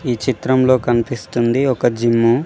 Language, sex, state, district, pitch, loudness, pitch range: Telugu, male, Telangana, Mahabubabad, 120 Hz, -16 LUFS, 120-130 Hz